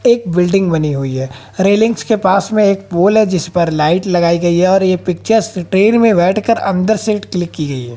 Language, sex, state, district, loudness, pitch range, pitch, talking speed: Hindi, female, Haryana, Jhajjar, -13 LUFS, 170-210 Hz, 185 Hz, 225 wpm